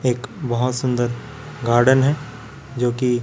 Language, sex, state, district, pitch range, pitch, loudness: Hindi, male, Chhattisgarh, Raipur, 120-130 Hz, 125 Hz, -20 LUFS